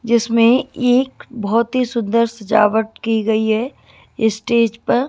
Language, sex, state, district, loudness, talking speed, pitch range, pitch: Hindi, female, Maharashtra, Gondia, -17 LUFS, 130 wpm, 220-240 Hz, 230 Hz